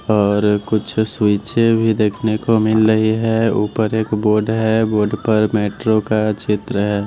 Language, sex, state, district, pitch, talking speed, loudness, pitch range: Hindi, male, Bihar, West Champaran, 110 Hz, 160 wpm, -16 LUFS, 105-110 Hz